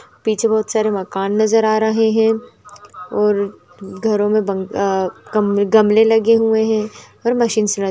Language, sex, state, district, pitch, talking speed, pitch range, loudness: Hindi, female, Bihar, Purnia, 215 Hz, 160 wpm, 200-225 Hz, -16 LUFS